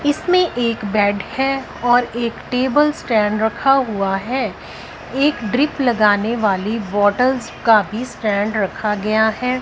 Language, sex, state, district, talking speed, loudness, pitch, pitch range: Hindi, female, Punjab, Fazilka, 135 wpm, -18 LUFS, 235 Hz, 210-260 Hz